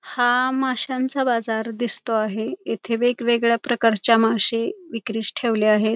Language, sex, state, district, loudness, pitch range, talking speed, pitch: Marathi, female, Maharashtra, Pune, -20 LUFS, 225-250 Hz, 120 wpm, 235 Hz